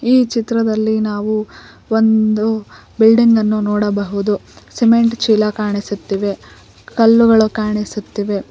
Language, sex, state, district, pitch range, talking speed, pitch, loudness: Kannada, female, Karnataka, Koppal, 210-225 Hz, 85 wpm, 215 Hz, -15 LUFS